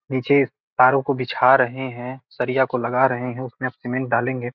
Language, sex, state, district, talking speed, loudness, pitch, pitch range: Hindi, male, Bihar, Gopalganj, 210 wpm, -20 LUFS, 130 Hz, 125-130 Hz